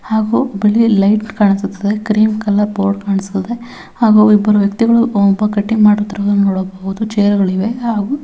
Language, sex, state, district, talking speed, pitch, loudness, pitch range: Kannada, female, Karnataka, Bellary, 140 wpm, 210 Hz, -14 LUFS, 200-220 Hz